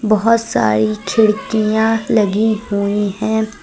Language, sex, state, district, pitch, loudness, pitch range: Hindi, female, Uttar Pradesh, Lucknow, 215 Hz, -16 LUFS, 205-220 Hz